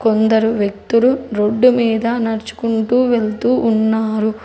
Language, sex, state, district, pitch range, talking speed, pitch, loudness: Telugu, female, Telangana, Hyderabad, 220-235 Hz, 95 wpm, 225 Hz, -16 LUFS